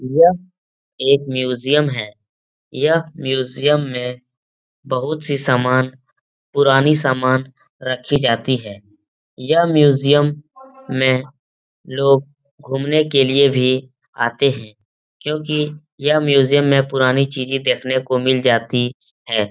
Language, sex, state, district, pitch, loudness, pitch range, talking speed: Hindi, male, Uttar Pradesh, Etah, 130 Hz, -17 LUFS, 125-145 Hz, 110 wpm